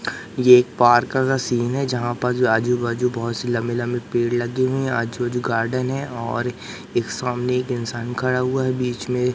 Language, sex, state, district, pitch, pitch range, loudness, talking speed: Hindi, male, Madhya Pradesh, Katni, 125 Hz, 120-125 Hz, -21 LUFS, 185 wpm